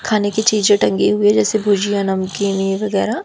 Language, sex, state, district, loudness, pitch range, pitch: Hindi, female, Haryana, Jhajjar, -16 LUFS, 200-215 Hz, 205 Hz